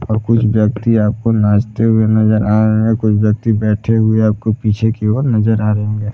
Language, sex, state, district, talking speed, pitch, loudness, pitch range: Hindi, male, Bihar, Saran, 205 wpm, 110 Hz, -14 LUFS, 105-110 Hz